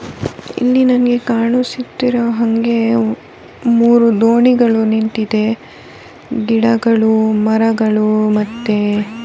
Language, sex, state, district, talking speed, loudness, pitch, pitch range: Kannada, female, Karnataka, Dharwad, 70 wpm, -14 LUFS, 230 Hz, 220-235 Hz